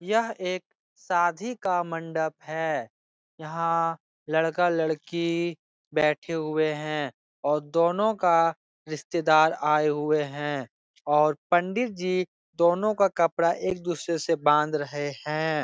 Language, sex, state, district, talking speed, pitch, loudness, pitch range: Hindi, male, Bihar, Jahanabad, 125 wpm, 165 Hz, -26 LUFS, 150-175 Hz